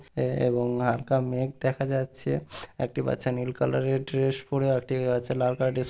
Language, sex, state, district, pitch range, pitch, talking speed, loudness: Bengali, male, West Bengal, Malda, 125-135 Hz, 130 Hz, 205 wpm, -27 LUFS